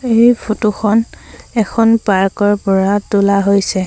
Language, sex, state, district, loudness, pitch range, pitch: Assamese, female, Assam, Sonitpur, -14 LUFS, 200-225 Hz, 205 Hz